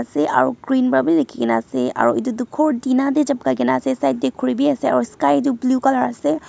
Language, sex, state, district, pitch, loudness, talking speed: Nagamese, female, Nagaland, Dimapur, 245 Hz, -18 LUFS, 240 wpm